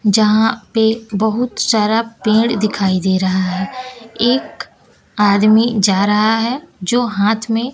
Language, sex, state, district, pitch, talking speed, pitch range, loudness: Hindi, female, Bihar, West Champaran, 220 Hz, 130 wpm, 205-230 Hz, -15 LUFS